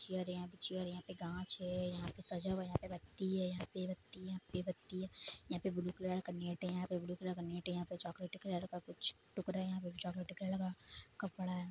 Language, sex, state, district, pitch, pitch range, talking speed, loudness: Hindi, female, Bihar, Kishanganj, 180 Hz, 180-185 Hz, 215 wpm, -43 LUFS